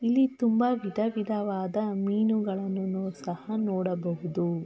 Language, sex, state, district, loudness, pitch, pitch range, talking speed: Kannada, female, Karnataka, Mysore, -29 LUFS, 200 Hz, 185-220 Hz, 105 wpm